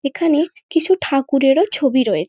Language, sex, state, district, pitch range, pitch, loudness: Bengali, female, West Bengal, North 24 Parganas, 275-340 Hz, 295 Hz, -17 LUFS